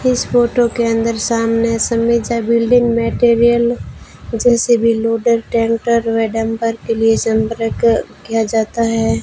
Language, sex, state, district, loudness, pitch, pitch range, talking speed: Hindi, female, Rajasthan, Bikaner, -15 LUFS, 230 Hz, 225-235 Hz, 135 wpm